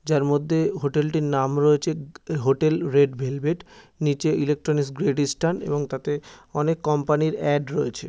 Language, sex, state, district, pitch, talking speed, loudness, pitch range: Bengali, male, West Bengal, North 24 Parganas, 150 Hz, 150 wpm, -23 LUFS, 145-155 Hz